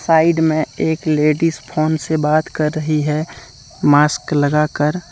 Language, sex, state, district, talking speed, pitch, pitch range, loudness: Hindi, male, Jharkhand, Deoghar, 140 wpm, 155 Hz, 150-160 Hz, -17 LUFS